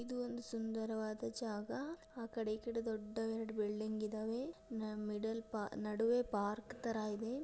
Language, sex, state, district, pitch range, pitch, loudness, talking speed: Kannada, female, Karnataka, Dharwad, 215-235 Hz, 225 Hz, -42 LUFS, 135 wpm